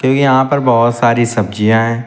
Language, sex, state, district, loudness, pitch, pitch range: Hindi, male, Uttar Pradesh, Lucknow, -12 LUFS, 120 Hz, 115-130 Hz